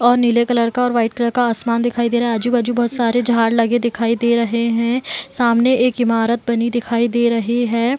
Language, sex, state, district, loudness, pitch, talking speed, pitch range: Hindi, female, Bihar, Gopalganj, -17 LUFS, 235 Hz, 225 wpm, 230-240 Hz